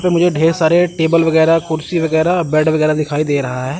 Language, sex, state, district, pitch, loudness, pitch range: Hindi, male, Chandigarh, Chandigarh, 160 Hz, -14 LUFS, 155-165 Hz